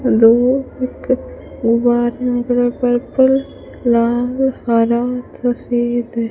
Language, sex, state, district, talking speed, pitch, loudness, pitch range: Hindi, female, Rajasthan, Bikaner, 65 wpm, 245 Hz, -16 LUFS, 240-255 Hz